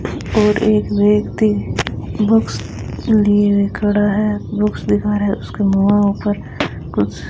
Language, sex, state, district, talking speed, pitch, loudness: Hindi, female, Rajasthan, Bikaner, 130 wpm, 205 Hz, -16 LUFS